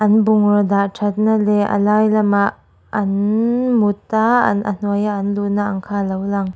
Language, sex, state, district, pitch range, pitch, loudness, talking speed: Mizo, female, Mizoram, Aizawl, 200-215 Hz, 205 Hz, -17 LUFS, 175 wpm